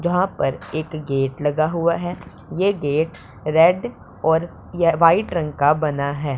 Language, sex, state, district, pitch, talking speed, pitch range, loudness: Hindi, male, Punjab, Pathankot, 160 Hz, 160 wpm, 145-170 Hz, -20 LUFS